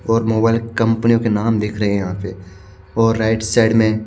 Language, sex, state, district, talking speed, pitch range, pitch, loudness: Hindi, male, Haryana, Charkhi Dadri, 220 wpm, 100-115 Hz, 110 Hz, -17 LUFS